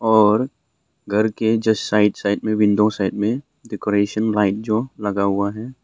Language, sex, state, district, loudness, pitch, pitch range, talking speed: Hindi, male, Arunachal Pradesh, Longding, -19 LUFS, 105 Hz, 105-110 Hz, 165 wpm